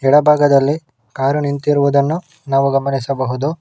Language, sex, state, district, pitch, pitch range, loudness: Kannada, male, Karnataka, Bangalore, 140 Hz, 135-145 Hz, -16 LUFS